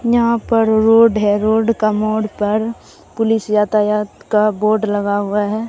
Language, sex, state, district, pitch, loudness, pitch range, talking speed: Hindi, female, Bihar, Katihar, 215 Hz, -15 LUFS, 210-225 Hz, 160 wpm